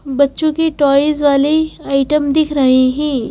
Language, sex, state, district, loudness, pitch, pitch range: Hindi, female, Madhya Pradesh, Bhopal, -14 LUFS, 285 Hz, 275-305 Hz